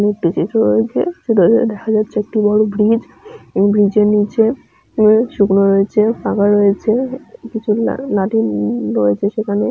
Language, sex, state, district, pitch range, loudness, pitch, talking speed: Bengali, female, West Bengal, Jalpaiguri, 200-225 Hz, -15 LUFS, 210 Hz, 125 wpm